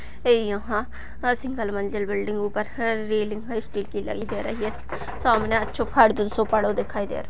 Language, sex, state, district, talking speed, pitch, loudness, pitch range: Hindi, female, Uttar Pradesh, Jyotiba Phule Nagar, 195 wpm, 215 Hz, -25 LUFS, 210-225 Hz